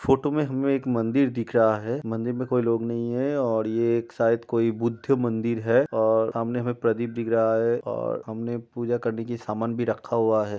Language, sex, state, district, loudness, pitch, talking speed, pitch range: Hindi, male, Uttar Pradesh, Jyotiba Phule Nagar, -25 LUFS, 115 Hz, 220 wpm, 115-120 Hz